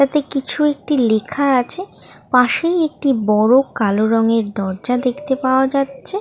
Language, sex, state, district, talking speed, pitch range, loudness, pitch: Bengali, female, West Bengal, North 24 Parganas, 145 wpm, 225-285 Hz, -17 LUFS, 260 Hz